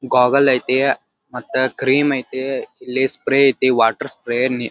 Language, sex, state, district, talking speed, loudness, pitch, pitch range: Kannada, male, Karnataka, Dharwad, 125 wpm, -17 LUFS, 130 Hz, 125-135 Hz